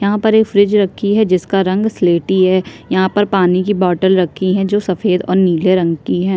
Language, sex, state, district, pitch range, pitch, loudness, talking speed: Hindi, female, Chhattisgarh, Sukma, 185-200 Hz, 190 Hz, -14 LUFS, 225 wpm